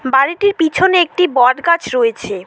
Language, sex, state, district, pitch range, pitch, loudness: Bengali, female, West Bengal, Cooch Behar, 260-370 Hz, 330 Hz, -13 LUFS